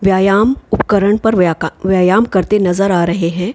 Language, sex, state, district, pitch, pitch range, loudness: Hindi, female, Maharashtra, Chandrapur, 190 Hz, 180-205 Hz, -13 LUFS